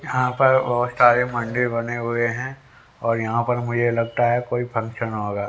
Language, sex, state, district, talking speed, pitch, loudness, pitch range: Hindi, male, Haryana, Rohtak, 185 wpm, 120 Hz, -21 LUFS, 115-125 Hz